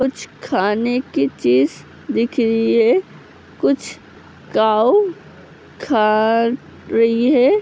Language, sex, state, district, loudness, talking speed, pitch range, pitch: Hindi, female, Uttar Pradesh, Hamirpur, -17 LUFS, 95 wpm, 215-265 Hz, 230 Hz